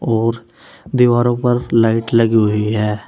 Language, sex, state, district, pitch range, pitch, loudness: Hindi, male, Uttar Pradesh, Saharanpur, 110-120 Hz, 115 Hz, -15 LUFS